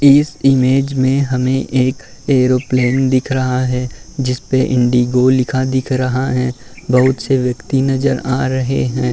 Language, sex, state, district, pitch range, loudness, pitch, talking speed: Hindi, male, Uttar Pradesh, Varanasi, 125-135 Hz, -15 LUFS, 130 Hz, 140 wpm